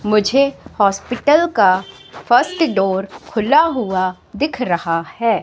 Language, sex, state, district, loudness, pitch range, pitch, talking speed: Hindi, female, Madhya Pradesh, Katni, -17 LUFS, 190-275 Hz, 215 Hz, 110 wpm